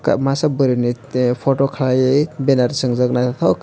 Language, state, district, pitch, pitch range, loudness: Kokborok, Tripura, West Tripura, 130 Hz, 125-135 Hz, -17 LUFS